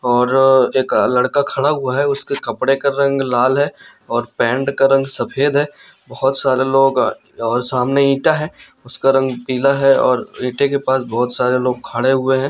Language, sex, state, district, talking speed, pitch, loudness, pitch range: Hindi, male, Chhattisgarh, Bilaspur, 185 wpm, 135 Hz, -16 LUFS, 125-140 Hz